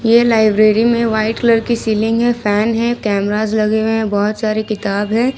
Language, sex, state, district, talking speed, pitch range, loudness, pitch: Hindi, female, Jharkhand, Ranchi, 200 wpm, 215-230 Hz, -15 LUFS, 220 Hz